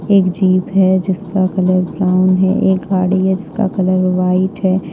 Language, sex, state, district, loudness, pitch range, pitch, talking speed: Hindi, female, Jharkhand, Ranchi, -14 LUFS, 185-190 Hz, 185 Hz, 170 wpm